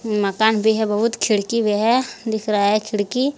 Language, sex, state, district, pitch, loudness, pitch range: Hindi, female, Jharkhand, Deoghar, 220 Hz, -19 LUFS, 210-230 Hz